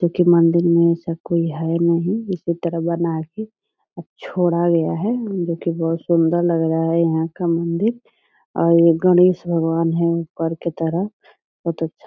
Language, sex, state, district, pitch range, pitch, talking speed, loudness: Hindi, female, Bihar, Purnia, 165-175 Hz, 170 Hz, 185 wpm, -19 LUFS